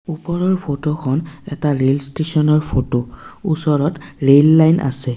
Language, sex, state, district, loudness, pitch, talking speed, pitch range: Assamese, male, Assam, Kamrup Metropolitan, -17 LUFS, 150 Hz, 115 wpm, 140-160 Hz